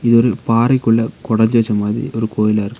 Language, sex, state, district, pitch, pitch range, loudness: Tamil, male, Tamil Nadu, Nilgiris, 115 Hz, 110-120 Hz, -16 LUFS